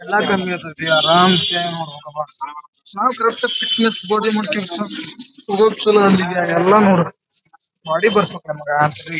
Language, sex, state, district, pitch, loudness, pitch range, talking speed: Kannada, male, Karnataka, Dharwad, 185 Hz, -16 LUFS, 165-215 Hz, 45 wpm